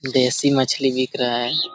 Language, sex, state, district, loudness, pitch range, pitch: Hindi, male, Jharkhand, Sahebganj, -19 LUFS, 125-135 Hz, 130 Hz